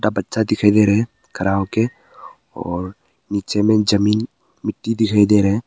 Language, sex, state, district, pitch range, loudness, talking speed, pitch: Hindi, male, Arunachal Pradesh, Papum Pare, 100-110 Hz, -18 LUFS, 160 wpm, 105 Hz